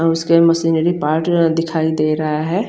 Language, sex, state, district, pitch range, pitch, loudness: Hindi, female, Chandigarh, Chandigarh, 160-165 Hz, 165 Hz, -16 LUFS